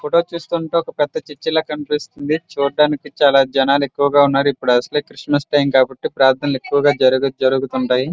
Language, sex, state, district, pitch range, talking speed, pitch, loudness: Telugu, male, Andhra Pradesh, Srikakulam, 135-150 Hz, 155 wpm, 145 Hz, -17 LUFS